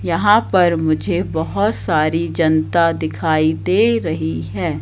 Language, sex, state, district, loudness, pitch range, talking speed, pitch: Hindi, female, Madhya Pradesh, Katni, -17 LUFS, 155-175 Hz, 125 wpm, 165 Hz